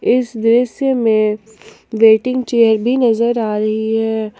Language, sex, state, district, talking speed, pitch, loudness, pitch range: Hindi, female, Jharkhand, Palamu, 135 wpm, 225 Hz, -15 LUFS, 220-240 Hz